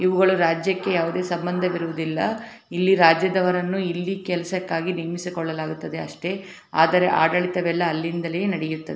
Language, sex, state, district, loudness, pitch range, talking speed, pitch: Kannada, female, Karnataka, Dharwad, -22 LUFS, 165-185 Hz, 105 wpm, 180 Hz